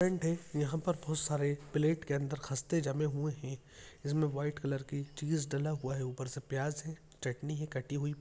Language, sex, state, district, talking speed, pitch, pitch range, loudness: Hindi, male, Uttarakhand, Tehri Garhwal, 205 wpm, 145 Hz, 140-155 Hz, -36 LUFS